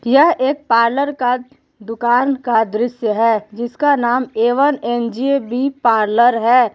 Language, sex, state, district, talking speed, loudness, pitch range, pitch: Hindi, female, Jharkhand, Palamu, 150 wpm, -16 LUFS, 230-275 Hz, 245 Hz